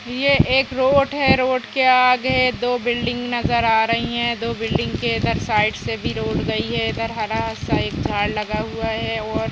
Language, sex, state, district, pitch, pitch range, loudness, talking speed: Hindi, female, Uttar Pradesh, Jalaun, 240 Hz, 225-255 Hz, -19 LUFS, 200 wpm